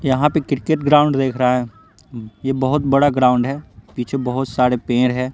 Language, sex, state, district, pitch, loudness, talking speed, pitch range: Hindi, male, Bihar, Patna, 130 Hz, -17 LUFS, 190 wpm, 125-140 Hz